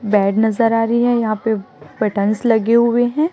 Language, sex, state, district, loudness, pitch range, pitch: Hindi, female, Chhattisgarh, Raipur, -16 LUFS, 215-235 Hz, 225 Hz